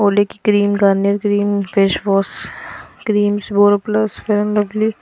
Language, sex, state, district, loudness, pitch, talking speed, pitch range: Hindi, female, Himachal Pradesh, Shimla, -16 LUFS, 205 Hz, 130 wpm, 200-210 Hz